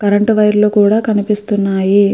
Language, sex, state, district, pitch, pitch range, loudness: Telugu, female, Andhra Pradesh, Guntur, 205 Hz, 205-210 Hz, -12 LUFS